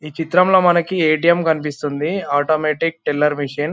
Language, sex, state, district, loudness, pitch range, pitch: Telugu, male, Andhra Pradesh, Anantapur, -17 LUFS, 150-170 Hz, 155 Hz